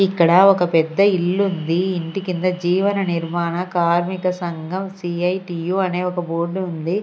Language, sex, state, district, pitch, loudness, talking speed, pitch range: Telugu, female, Andhra Pradesh, Sri Satya Sai, 180 Hz, -19 LUFS, 130 wpm, 170-190 Hz